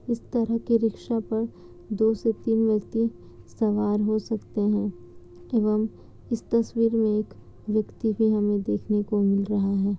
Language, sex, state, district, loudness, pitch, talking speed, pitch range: Hindi, female, Bihar, Kishanganj, -25 LUFS, 215 Hz, 155 wpm, 205-225 Hz